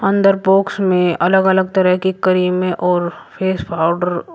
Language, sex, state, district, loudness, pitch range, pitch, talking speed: Hindi, male, Uttar Pradesh, Shamli, -15 LUFS, 180-190 Hz, 185 Hz, 165 wpm